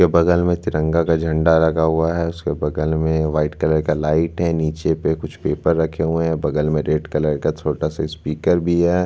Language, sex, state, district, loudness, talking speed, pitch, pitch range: Hindi, male, Chhattisgarh, Bastar, -19 LUFS, 225 wpm, 80 Hz, 75-85 Hz